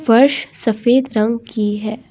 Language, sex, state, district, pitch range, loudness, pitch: Hindi, female, Assam, Kamrup Metropolitan, 215-255 Hz, -16 LUFS, 230 Hz